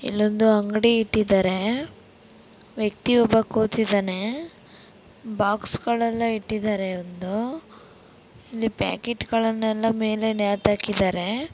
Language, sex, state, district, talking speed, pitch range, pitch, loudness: Kannada, female, Karnataka, Dharwad, 60 wpm, 205-230 Hz, 220 Hz, -23 LUFS